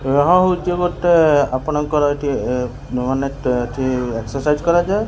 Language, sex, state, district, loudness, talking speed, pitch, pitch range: Odia, male, Odisha, Khordha, -18 LUFS, 130 wpm, 145 Hz, 130-170 Hz